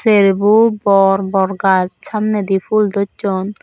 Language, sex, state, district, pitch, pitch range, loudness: Chakma, female, Tripura, Dhalai, 200 Hz, 195-215 Hz, -14 LUFS